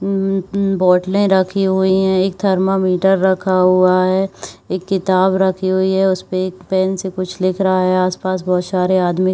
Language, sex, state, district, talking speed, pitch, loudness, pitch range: Hindi, female, Chhattisgarh, Bilaspur, 180 wpm, 185 Hz, -16 LUFS, 185-190 Hz